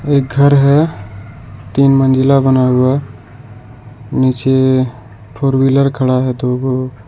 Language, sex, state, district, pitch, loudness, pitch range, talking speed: Hindi, male, Jharkhand, Deoghar, 130 Hz, -13 LUFS, 120-135 Hz, 120 wpm